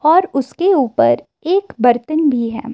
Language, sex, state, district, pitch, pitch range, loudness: Hindi, female, Himachal Pradesh, Shimla, 270 Hz, 240-335 Hz, -16 LUFS